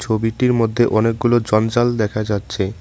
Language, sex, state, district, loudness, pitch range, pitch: Bengali, male, West Bengal, Cooch Behar, -18 LUFS, 110-120 Hz, 115 Hz